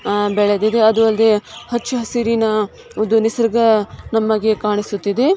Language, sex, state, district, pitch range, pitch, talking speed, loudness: Kannada, female, Karnataka, Shimoga, 210-230 Hz, 220 Hz, 110 wpm, -17 LUFS